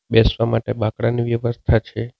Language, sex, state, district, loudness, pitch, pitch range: Gujarati, male, Gujarat, Navsari, -20 LUFS, 115 Hz, 115-120 Hz